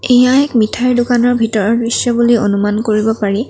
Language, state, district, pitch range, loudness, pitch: Assamese, Assam, Kamrup Metropolitan, 215-245 Hz, -13 LUFS, 235 Hz